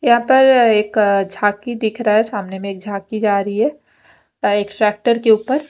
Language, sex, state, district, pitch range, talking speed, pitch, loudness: Hindi, female, Punjab, Fazilka, 205-235 Hz, 180 wpm, 215 Hz, -16 LUFS